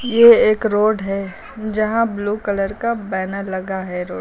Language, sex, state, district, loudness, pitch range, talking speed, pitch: Hindi, female, Uttar Pradesh, Lucknow, -18 LUFS, 195-220 Hz, 185 wpm, 205 Hz